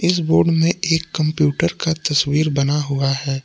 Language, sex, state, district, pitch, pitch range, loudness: Hindi, male, Jharkhand, Palamu, 155 Hz, 140-165 Hz, -18 LUFS